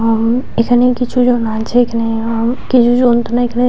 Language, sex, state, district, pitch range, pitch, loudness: Bengali, female, West Bengal, Paschim Medinipur, 230-245 Hz, 240 Hz, -13 LUFS